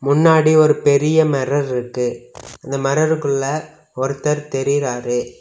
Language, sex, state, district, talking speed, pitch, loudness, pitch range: Tamil, male, Tamil Nadu, Kanyakumari, 100 wpm, 140 Hz, -17 LUFS, 135-155 Hz